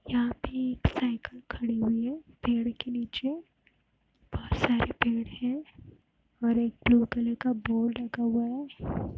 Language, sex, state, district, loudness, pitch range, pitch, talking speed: Hindi, female, Uttar Pradesh, Hamirpur, -30 LUFS, 235-255 Hz, 240 Hz, 145 wpm